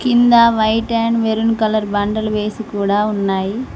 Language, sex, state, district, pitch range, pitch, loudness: Telugu, female, Telangana, Mahabubabad, 210-230 Hz, 220 Hz, -16 LUFS